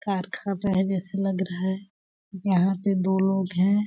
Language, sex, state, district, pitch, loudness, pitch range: Hindi, female, Chhattisgarh, Balrampur, 190 Hz, -25 LUFS, 190-195 Hz